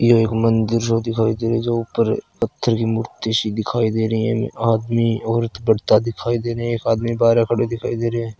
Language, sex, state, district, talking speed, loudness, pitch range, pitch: Marwari, male, Rajasthan, Churu, 205 wpm, -19 LUFS, 110-115 Hz, 115 Hz